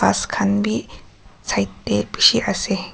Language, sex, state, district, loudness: Nagamese, female, Nagaland, Kohima, -19 LUFS